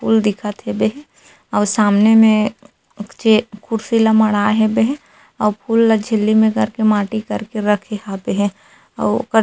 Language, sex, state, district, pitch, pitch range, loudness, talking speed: Chhattisgarhi, female, Chhattisgarh, Rajnandgaon, 215 Hz, 210-225 Hz, -16 LUFS, 165 wpm